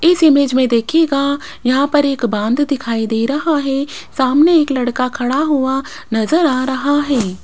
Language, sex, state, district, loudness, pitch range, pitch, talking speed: Hindi, female, Rajasthan, Jaipur, -15 LUFS, 250-290 Hz, 275 Hz, 170 wpm